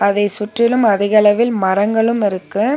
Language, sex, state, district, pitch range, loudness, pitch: Tamil, female, Tamil Nadu, Nilgiris, 200-230 Hz, -15 LUFS, 210 Hz